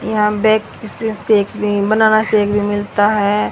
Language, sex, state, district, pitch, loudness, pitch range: Hindi, female, Haryana, Rohtak, 210 Hz, -15 LUFS, 205-215 Hz